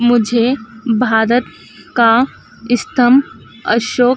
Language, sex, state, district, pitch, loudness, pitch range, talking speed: Hindi, female, Madhya Pradesh, Dhar, 240 Hz, -14 LUFS, 230-250 Hz, 70 wpm